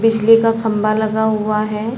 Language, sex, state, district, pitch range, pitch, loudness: Hindi, female, Chhattisgarh, Balrampur, 215-225 Hz, 220 Hz, -15 LUFS